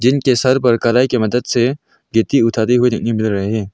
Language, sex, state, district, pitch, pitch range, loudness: Hindi, male, Arunachal Pradesh, Longding, 120 Hz, 115-125 Hz, -15 LUFS